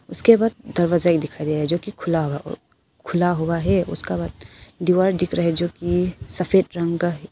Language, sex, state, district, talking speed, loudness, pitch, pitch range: Hindi, female, Arunachal Pradesh, Papum Pare, 195 wpm, -21 LUFS, 175 Hz, 160-180 Hz